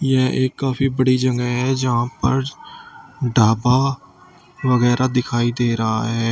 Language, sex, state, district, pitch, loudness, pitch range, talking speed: Hindi, male, Uttar Pradesh, Shamli, 130 Hz, -19 LUFS, 120-135 Hz, 135 wpm